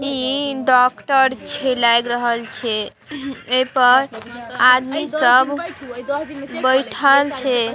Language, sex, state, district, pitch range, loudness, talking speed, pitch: Maithili, female, Bihar, Darbhanga, 245-275 Hz, -17 LUFS, 85 wpm, 260 Hz